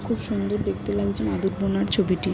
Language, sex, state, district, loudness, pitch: Bengali, female, West Bengal, Dakshin Dinajpur, -25 LUFS, 105 Hz